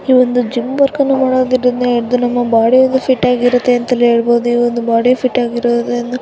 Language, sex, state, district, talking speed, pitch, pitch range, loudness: Kannada, female, Karnataka, Gulbarga, 165 wpm, 245 Hz, 240-255 Hz, -13 LUFS